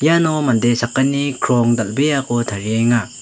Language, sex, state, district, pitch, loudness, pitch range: Garo, male, Meghalaya, West Garo Hills, 120 Hz, -17 LUFS, 115-140 Hz